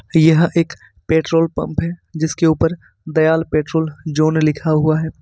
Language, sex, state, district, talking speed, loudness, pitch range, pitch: Hindi, male, Jharkhand, Ranchi, 140 wpm, -17 LUFS, 155-165 Hz, 160 Hz